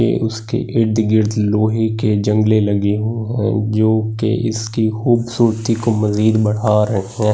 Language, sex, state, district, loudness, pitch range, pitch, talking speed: Hindi, male, Delhi, New Delhi, -16 LUFS, 105-115 Hz, 110 Hz, 145 wpm